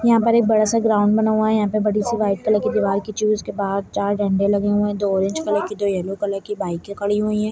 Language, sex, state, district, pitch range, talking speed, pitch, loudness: Hindi, male, Chhattisgarh, Bastar, 200-215 Hz, 310 wpm, 205 Hz, -20 LUFS